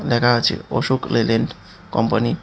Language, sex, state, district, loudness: Bengali, male, Tripura, West Tripura, -19 LUFS